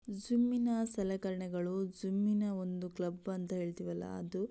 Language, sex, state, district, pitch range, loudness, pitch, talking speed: Kannada, female, Karnataka, Belgaum, 180-205 Hz, -37 LUFS, 190 Hz, 145 wpm